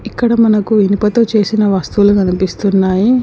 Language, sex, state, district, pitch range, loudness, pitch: Telugu, female, Telangana, Karimnagar, 195-220 Hz, -12 LUFS, 205 Hz